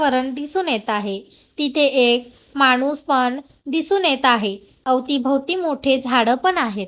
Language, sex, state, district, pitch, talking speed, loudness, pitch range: Marathi, female, Maharashtra, Gondia, 265 Hz, 140 wpm, -17 LUFS, 245-290 Hz